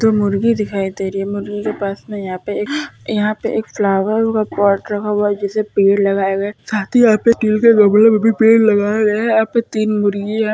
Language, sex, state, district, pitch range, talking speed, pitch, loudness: Hindi, female, Maharashtra, Sindhudurg, 200-220 Hz, 230 wpm, 210 Hz, -15 LUFS